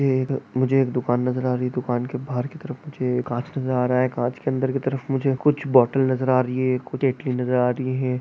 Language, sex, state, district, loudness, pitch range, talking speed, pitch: Hindi, male, West Bengal, Jhargram, -23 LUFS, 125-135 Hz, 255 wpm, 130 Hz